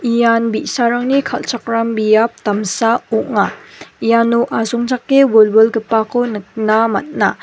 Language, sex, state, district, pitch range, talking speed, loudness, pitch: Garo, female, Meghalaya, West Garo Hills, 220-240 Hz, 90 wpm, -15 LUFS, 230 Hz